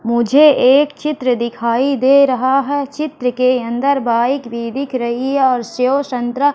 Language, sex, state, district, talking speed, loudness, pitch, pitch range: Hindi, female, Madhya Pradesh, Katni, 165 wpm, -15 LUFS, 260 Hz, 240-280 Hz